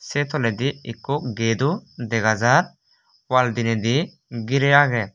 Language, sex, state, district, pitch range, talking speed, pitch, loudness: Chakma, male, Tripura, West Tripura, 115-145 Hz, 140 wpm, 125 Hz, -21 LUFS